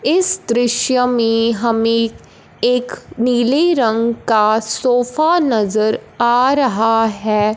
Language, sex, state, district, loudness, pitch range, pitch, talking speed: Hindi, female, Punjab, Fazilka, -15 LUFS, 225-250 Hz, 235 Hz, 105 wpm